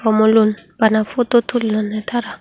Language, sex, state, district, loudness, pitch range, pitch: Chakma, female, Tripura, Unakoti, -17 LUFS, 215-240 Hz, 220 Hz